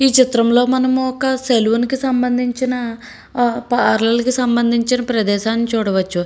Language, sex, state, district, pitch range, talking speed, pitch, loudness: Telugu, female, Andhra Pradesh, Srikakulam, 230-255 Hz, 115 wpm, 245 Hz, -16 LUFS